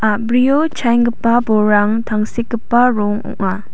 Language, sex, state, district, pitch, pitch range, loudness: Garo, female, Meghalaya, South Garo Hills, 230 Hz, 210-240 Hz, -15 LUFS